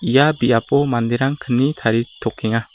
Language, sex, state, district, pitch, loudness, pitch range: Garo, male, Meghalaya, West Garo Hills, 125 Hz, -18 LUFS, 115-140 Hz